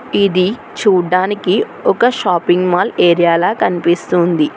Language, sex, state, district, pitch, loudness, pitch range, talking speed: Telugu, female, Telangana, Hyderabad, 180 Hz, -14 LUFS, 175-195 Hz, 90 wpm